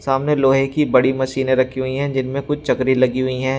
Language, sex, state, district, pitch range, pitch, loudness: Hindi, male, Uttar Pradesh, Shamli, 130-135 Hz, 130 Hz, -18 LUFS